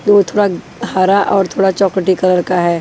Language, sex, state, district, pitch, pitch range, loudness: Hindi, female, Chhattisgarh, Raipur, 190 Hz, 185-200 Hz, -14 LUFS